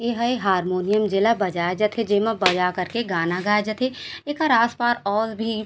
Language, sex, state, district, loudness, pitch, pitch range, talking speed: Chhattisgarhi, female, Chhattisgarh, Raigarh, -22 LUFS, 215 Hz, 190-235 Hz, 170 wpm